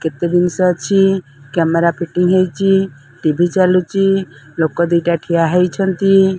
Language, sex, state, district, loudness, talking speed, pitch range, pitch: Odia, female, Odisha, Sambalpur, -15 LUFS, 115 wpm, 165-190 Hz, 175 Hz